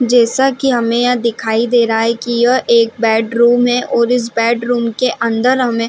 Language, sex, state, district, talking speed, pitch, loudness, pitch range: Hindi, female, Chhattisgarh, Balrampur, 205 wpm, 235 Hz, -13 LUFS, 230-245 Hz